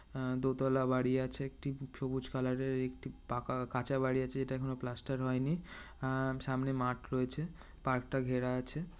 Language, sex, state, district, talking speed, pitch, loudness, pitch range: Bengali, male, West Bengal, North 24 Parganas, 145 wpm, 130 Hz, -36 LUFS, 130-135 Hz